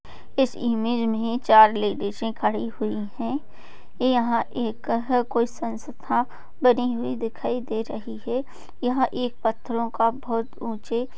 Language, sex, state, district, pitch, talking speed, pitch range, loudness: Hindi, female, Uttar Pradesh, Jyotiba Phule Nagar, 235 Hz, 140 wpm, 225-245 Hz, -24 LUFS